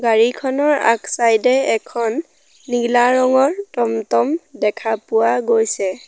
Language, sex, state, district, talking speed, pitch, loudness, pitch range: Assamese, female, Assam, Sonitpur, 110 wpm, 235 Hz, -17 LUFS, 225-265 Hz